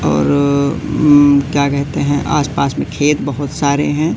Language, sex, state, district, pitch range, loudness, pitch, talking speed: Hindi, male, Madhya Pradesh, Katni, 140-145 Hz, -14 LUFS, 145 Hz, 170 wpm